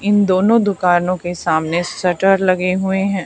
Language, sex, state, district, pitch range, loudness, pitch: Hindi, female, Haryana, Charkhi Dadri, 180-195 Hz, -16 LUFS, 185 Hz